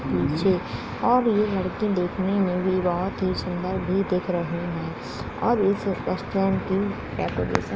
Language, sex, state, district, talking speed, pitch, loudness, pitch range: Hindi, male, Uttar Pradesh, Jalaun, 145 wpm, 185 Hz, -25 LUFS, 175-195 Hz